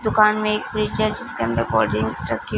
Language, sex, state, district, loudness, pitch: Hindi, female, Punjab, Fazilka, -21 LUFS, 210 Hz